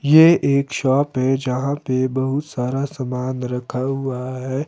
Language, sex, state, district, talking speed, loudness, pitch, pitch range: Hindi, male, Himachal Pradesh, Shimla, 155 wpm, -20 LUFS, 130 Hz, 130-140 Hz